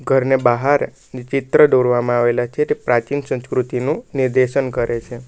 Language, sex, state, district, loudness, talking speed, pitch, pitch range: Gujarati, male, Gujarat, Valsad, -17 LUFS, 150 wpm, 130 Hz, 120-135 Hz